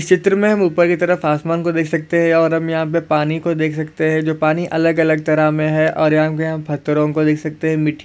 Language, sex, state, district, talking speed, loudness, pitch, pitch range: Hindi, male, Maharashtra, Solapur, 275 wpm, -16 LUFS, 160 Hz, 155-165 Hz